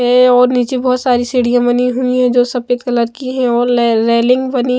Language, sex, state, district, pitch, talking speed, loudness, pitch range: Hindi, female, Maharashtra, Mumbai Suburban, 250 Hz, 215 wpm, -13 LUFS, 245-250 Hz